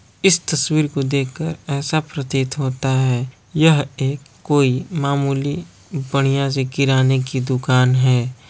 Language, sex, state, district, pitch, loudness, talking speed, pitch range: Hindi, male, Bihar, Kishanganj, 140 Hz, -19 LUFS, 135 wpm, 130-145 Hz